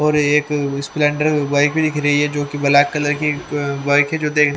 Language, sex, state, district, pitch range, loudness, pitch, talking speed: Hindi, male, Haryana, Charkhi Dadri, 145-150 Hz, -17 LUFS, 145 Hz, 235 wpm